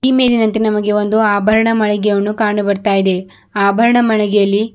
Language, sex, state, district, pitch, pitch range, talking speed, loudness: Kannada, female, Karnataka, Bidar, 210 Hz, 205-220 Hz, 140 wpm, -14 LUFS